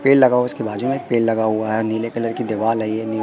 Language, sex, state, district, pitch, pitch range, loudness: Hindi, female, Madhya Pradesh, Katni, 115 Hz, 110-125 Hz, -19 LUFS